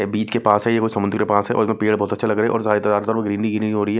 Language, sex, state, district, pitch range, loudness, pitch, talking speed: Hindi, male, Punjab, Kapurthala, 105-110 Hz, -19 LUFS, 105 Hz, 330 wpm